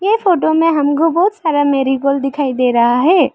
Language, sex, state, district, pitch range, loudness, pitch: Hindi, female, Arunachal Pradesh, Lower Dibang Valley, 275-335 Hz, -14 LUFS, 295 Hz